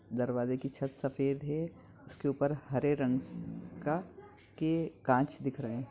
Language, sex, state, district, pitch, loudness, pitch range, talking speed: Hindi, male, Bihar, Madhepura, 135 Hz, -34 LUFS, 125-145 Hz, 150 wpm